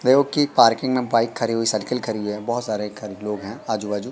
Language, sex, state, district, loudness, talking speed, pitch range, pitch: Hindi, male, Madhya Pradesh, Katni, -22 LUFS, 260 wpm, 105-125 Hz, 115 Hz